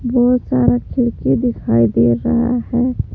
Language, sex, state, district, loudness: Hindi, female, Jharkhand, Palamu, -16 LUFS